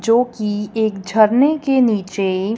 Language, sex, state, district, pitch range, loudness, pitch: Hindi, female, Punjab, Kapurthala, 200-240 Hz, -17 LUFS, 220 Hz